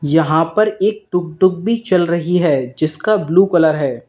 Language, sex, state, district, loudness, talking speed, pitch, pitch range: Hindi, male, Uttar Pradesh, Lalitpur, -15 LUFS, 175 wpm, 175 Hz, 155-190 Hz